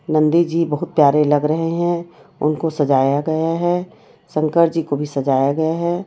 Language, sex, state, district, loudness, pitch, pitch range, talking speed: Hindi, female, Chhattisgarh, Raipur, -18 LUFS, 160 Hz, 150-170 Hz, 180 wpm